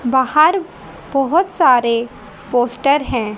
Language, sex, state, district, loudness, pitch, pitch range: Hindi, female, Haryana, Rohtak, -15 LUFS, 260 Hz, 240-310 Hz